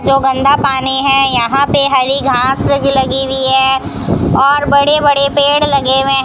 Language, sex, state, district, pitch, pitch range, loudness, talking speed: Hindi, female, Rajasthan, Bikaner, 275 Hz, 265-280 Hz, -11 LUFS, 185 wpm